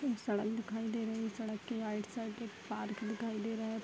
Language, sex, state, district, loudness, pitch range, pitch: Hindi, female, Bihar, Vaishali, -39 LUFS, 215-230 Hz, 220 Hz